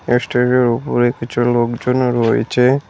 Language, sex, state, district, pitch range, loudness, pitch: Bengali, male, West Bengal, Cooch Behar, 120-125 Hz, -16 LUFS, 120 Hz